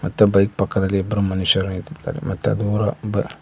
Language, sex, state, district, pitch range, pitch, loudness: Kannada, male, Karnataka, Koppal, 95-105 Hz, 100 Hz, -20 LUFS